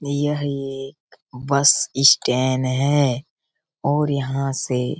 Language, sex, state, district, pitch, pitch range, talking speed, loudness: Hindi, male, Bihar, Araria, 135 Hz, 130-145 Hz, 120 wpm, -19 LUFS